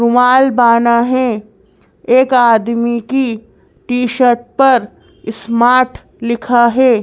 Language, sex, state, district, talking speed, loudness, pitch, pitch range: Hindi, female, Madhya Pradesh, Bhopal, 95 wpm, -12 LUFS, 240 Hz, 235-255 Hz